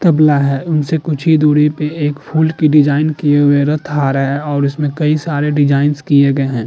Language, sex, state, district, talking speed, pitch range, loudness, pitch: Hindi, male, Uttar Pradesh, Jalaun, 225 wpm, 140-155 Hz, -13 LUFS, 150 Hz